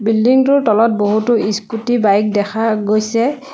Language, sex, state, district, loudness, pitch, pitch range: Assamese, female, Assam, Sonitpur, -14 LUFS, 220 Hz, 210-240 Hz